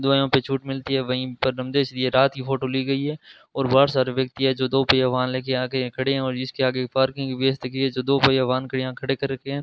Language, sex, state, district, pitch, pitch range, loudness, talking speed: Hindi, male, Rajasthan, Bikaner, 130 Hz, 130-135 Hz, -22 LUFS, 295 wpm